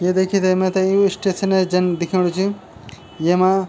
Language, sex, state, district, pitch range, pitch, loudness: Garhwali, male, Uttarakhand, Tehri Garhwal, 180-195 Hz, 185 Hz, -18 LUFS